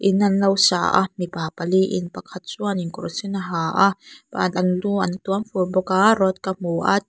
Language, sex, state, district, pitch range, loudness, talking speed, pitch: Mizo, female, Mizoram, Aizawl, 180-195 Hz, -21 LUFS, 230 wpm, 190 Hz